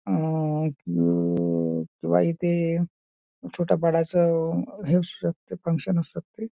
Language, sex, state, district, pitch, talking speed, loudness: Marathi, male, Maharashtra, Nagpur, 165 Hz, 120 wpm, -25 LUFS